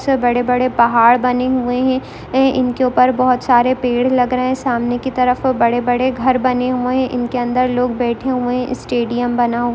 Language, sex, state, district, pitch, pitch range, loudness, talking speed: Hindi, female, Uttarakhand, Uttarkashi, 250 Hz, 245-255 Hz, -16 LUFS, 190 wpm